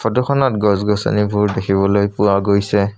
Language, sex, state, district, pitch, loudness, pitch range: Assamese, male, Assam, Sonitpur, 105 Hz, -16 LUFS, 100-105 Hz